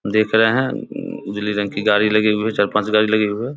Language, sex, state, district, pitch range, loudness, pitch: Hindi, male, Bihar, Samastipur, 105-110 Hz, -18 LUFS, 105 Hz